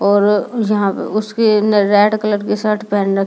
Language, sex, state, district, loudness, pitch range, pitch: Hindi, female, Delhi, New Delhi, -15 LUFS, 205-215 Hz, 210 Hz